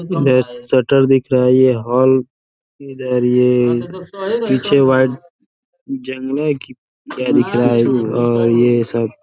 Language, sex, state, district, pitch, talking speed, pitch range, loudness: Hindi, male, Uttar Pradesh, Deoria, 130 Hz, 130 wpm, 120-135 Hz, -15 LUFS